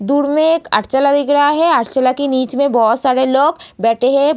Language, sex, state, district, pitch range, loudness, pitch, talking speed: Hindi, female, Uttar Pradesh, Deoria, 255-290 Hz, -14 LUFS, 280 Hz, 220 wpm